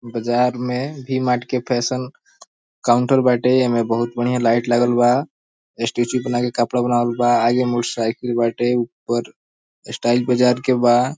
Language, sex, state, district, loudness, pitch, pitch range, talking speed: Bhojpuri, male, Bihar, East Champaran, -19 LUFS, 120 Hz, 120-125 Hz, 155 wpm